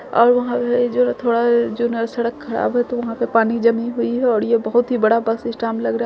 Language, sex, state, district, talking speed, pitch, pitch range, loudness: Hindi, female, Bihar, Saharsa, 265 wpm, 235 Hz, 230-245 Hz, -18 LUFS